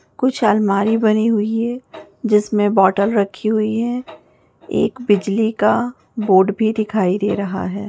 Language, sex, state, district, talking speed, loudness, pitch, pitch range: Hindi, female, Bihar, Muzaffarpur, 160 wpm, -17 LUFS, 215 Hz, 205-225 Hz